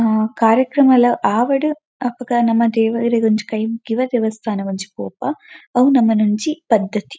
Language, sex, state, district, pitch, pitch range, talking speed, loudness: Tulu, female, Karnataka, Dakshina Kannada, 235 Hz, 220-255 Hz, 135 wpm, -17 LUFS